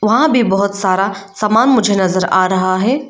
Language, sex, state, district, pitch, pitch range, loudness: Hindi, female, Arunachal Pradesh, Lower Dibang Valley, 200 Hz, 190-225 Hz, -14 LUFS